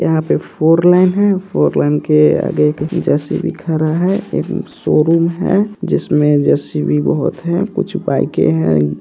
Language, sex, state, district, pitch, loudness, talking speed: Hindi, male, Bihar, Purnia, 160 Hz, -14 LUFS, 165 wpm